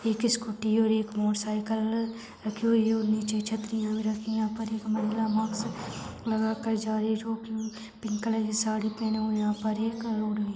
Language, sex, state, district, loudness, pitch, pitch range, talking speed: Hindi, female, Rajasthan, Churu, -29 LUFS, 220 Hz, 215-225 Hz, 215 wpm